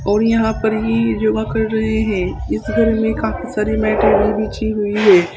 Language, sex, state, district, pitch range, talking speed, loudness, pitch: Hindi, female, Uttar Pradesh, Saharanpur, 200-220 Hz, 200 wpm, -17 LUFS, 215 Hz